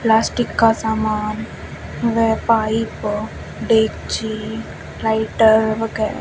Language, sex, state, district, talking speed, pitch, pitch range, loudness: Hindi, female, Haryana, Charkhi Dadri, 75 wpm, 220 Hz, 220-225 Hz, -19 LUFS